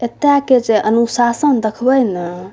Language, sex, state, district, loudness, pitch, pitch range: Maithili, female, Bihar, Saharsa, -14 LUFS, 235 Hz, 220-260 Hz